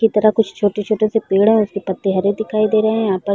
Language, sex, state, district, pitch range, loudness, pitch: Hindi, female, Chhattisgarh, Balrampur, 200-220 Hz, -17 LUFS, 215 Hz